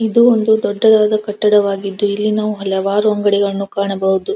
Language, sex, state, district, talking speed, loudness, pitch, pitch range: Kannada, female, Karnataka, Dharwad, 150 wpm, -15 LUFS, 210 Hz, 200-215 Hz